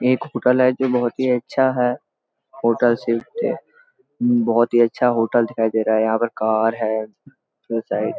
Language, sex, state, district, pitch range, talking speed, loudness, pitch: Hindi, male, Uttarakhand, Uttarkashi, 115-125 Hz, 175 wpm, -19 LUFS, 120 Hz